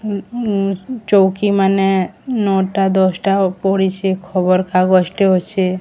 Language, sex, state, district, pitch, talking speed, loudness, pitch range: Odia, female, Odisha, Sambalpur, 195 Hz, 70 wpm, -16 LUFS, 185-200 Hz